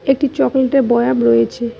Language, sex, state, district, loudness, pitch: Bengali, female, West Bengal, Cooch Behar, -15 LUFS, 240 Hz